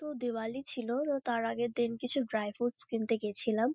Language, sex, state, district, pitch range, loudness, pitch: Bengali, female, West Bengal, Kolkata, 225-250 Hz, -34 LUFS, 240 Hz